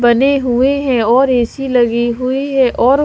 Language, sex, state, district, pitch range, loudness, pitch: Hindi, female, Himachal Pradesh, Shimla, 240-270 Hz, -13 LUFS, 255 Hz